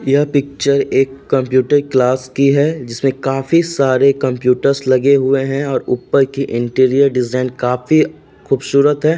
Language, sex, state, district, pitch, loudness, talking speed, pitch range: Hindi, male, Uttar Pradesh, Jalaun, 135 Hz, -15 LUFS, 145 wpm, 130-140 Hz